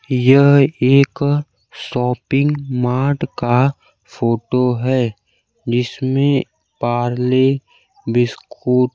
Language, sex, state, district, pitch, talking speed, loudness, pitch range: Hindi, male, Bihar, Kaimur, 125 Hz, 75 wpm, -17 LUFS, 120-140 Hz